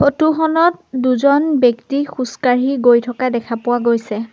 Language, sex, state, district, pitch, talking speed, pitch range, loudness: Assamese, female, Assam, Sonitpur, 255 Hz, 140 wpm, 240-285 Hz, -16 LUFS